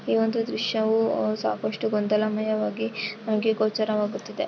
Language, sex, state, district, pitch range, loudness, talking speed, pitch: Kannada, female, Karnataka, Shimoga, 195-220 Hz, -25 LUFS, 95 wpm, 215 Hz